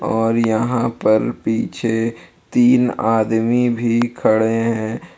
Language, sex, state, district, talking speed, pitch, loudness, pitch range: Hindi, male, Jharkhand, Palamu, 105 wpm, 115 Hz, -17 LUFS, 110-115 Hz